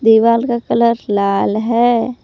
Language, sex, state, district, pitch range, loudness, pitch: Hindi, female, Jharkhand, Palamu, 220-235 Hz, -14 LUFS, 230 Hz